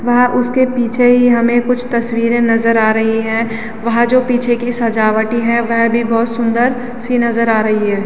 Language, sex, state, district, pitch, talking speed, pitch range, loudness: Hindi, female, Uttarakhand, Tehri Garhwal, 235 Hz, 195 wpm, 225-245 Hz, -14 LUFS